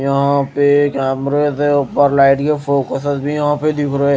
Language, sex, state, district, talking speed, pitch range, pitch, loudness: Hindi, male, Odisha, Malkangiri, 185 wpm, 140-145 Hz, 140 Hz, -15 LUFS